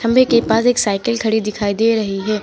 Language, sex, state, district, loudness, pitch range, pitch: Hindi, female, Uttar Pradesh, Lucknow, -16 LUFS, 210-235 Hz, 220 Hz